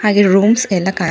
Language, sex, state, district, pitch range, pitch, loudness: Kannada, female, Karnataka, Bangalore, 190-210 Hz, 195 Hz, -13 LUFS